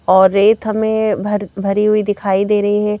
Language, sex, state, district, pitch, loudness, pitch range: Hindi, female, Madhya Pradesh, Bhopal, 205 Hz, -15 LUFS, 200-210 Hz